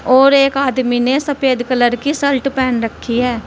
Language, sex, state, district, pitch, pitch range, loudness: Hindi, female, Uttar Pradesh, Saharanpur, 260 Hz, 245-275 Hz, -15 LUFS